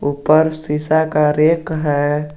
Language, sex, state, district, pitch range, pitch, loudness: Hindi, male, Jharkhand, Garhwa, 150-160 Hz, 150 Hz, -16 LUFS